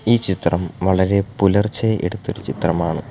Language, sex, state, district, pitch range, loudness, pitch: Malayalam, male, Kerala, Kollam, 90-110 Hz, -19 LUFS, 95 Hz